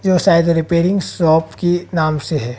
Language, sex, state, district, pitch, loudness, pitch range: Hindi, female, Haryana, Jhajjar, 170 Hz, -16 LUFS, 160-180 Hz